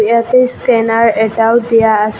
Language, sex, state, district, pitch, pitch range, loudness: Assamese, female, Assam, Kamrup Metropolitan, 230 Hz, 220-235 Hz, -11 LUFS